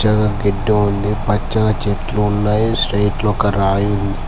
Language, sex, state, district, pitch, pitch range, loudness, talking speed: Telugu, male, Telangana, Hyderabad, 105 Hz, 100-105 Hz, -17 LUFS, 155 wpm